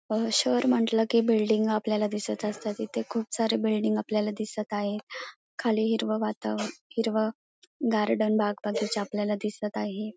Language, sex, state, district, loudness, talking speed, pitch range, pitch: Marathi, female, Maharashtra, Pune, -28 LUFS, 140 wpm, 210-225 Hz, 215 Hz